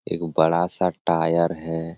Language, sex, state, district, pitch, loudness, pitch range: Hindi, male, Bihar, Supaul, 85 Hz, -22 LUFS, 80-85 Hz